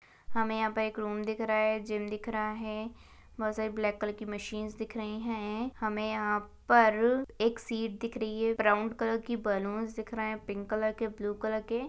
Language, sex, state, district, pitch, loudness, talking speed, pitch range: Hindi, female, Chhattisgarh, Balrampur, 220 Hz, -32 LUFS, 210 wpm, 215-225 Hz